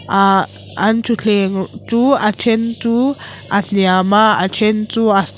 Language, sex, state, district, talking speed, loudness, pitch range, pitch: Mizo, female, Mizoram, Aizawl, 165 wpm, -15 LUFS, 195-230 Hz, 215 Hz